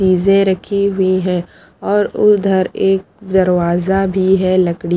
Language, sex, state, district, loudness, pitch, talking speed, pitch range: Hindi, female, Haryana, Charkhi Dadri, -14 LUFS, 190 Hz, 145 wpm, 185-195 Hz